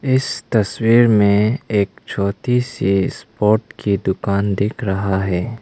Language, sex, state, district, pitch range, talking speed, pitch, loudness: Hindi, male, Arunachal Pradesh, Lower Dibang Valley, 100-115 Hz, 130 wpm, 105 Hz, -18 LUFS